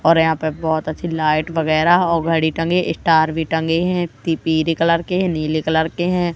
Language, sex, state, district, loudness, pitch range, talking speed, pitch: Hindi, female, Madhya Pradesh, Katni, -18 LUFS, 160-170 Hz, 205 wpm, 160 Hz